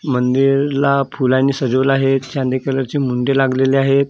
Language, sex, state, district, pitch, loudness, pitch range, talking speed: Marathi, male, Maharashtra, Gondia, 135 Hz, -16 LUFS, 130-135 Hz, 160 wpm